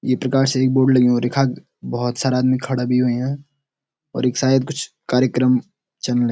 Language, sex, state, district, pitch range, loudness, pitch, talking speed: Garhwali, male, Uttarakhand, Uttarkashi, 125-135 Hz, -19 LUFS, 130 Hz, 200 wpm